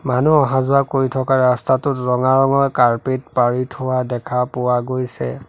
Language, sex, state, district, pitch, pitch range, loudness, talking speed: Assamese, male, Assam, Sonitpur, 130 Hz, 125-135 Hz, -17 LUFS, 155 wpm